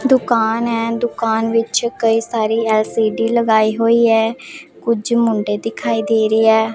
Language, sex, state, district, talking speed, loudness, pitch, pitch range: Punjabi, female, Punjab, Pathankot, 140 wpm, -16 LUFS, 225 Hz, 220-235 Hz